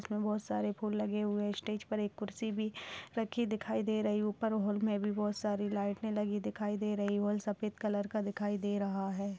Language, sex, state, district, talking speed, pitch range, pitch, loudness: Hindi, female, Bihar, Purnia, 215 wpm, 205-215 Hz, 210 Hz, -36 LUFS